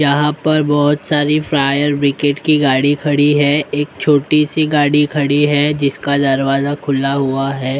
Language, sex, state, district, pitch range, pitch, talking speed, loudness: Hindi, male, Maharashtra, Mumbai Suburban, 140-150 Hz, 145 Hz, 170 wpm, -14 LUFS